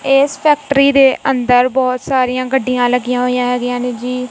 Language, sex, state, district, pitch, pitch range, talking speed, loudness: Punjabi, female, Punjab, Kapurthala, 255 Hz, 250-270 Hz, 165 wpm, -14 LUFS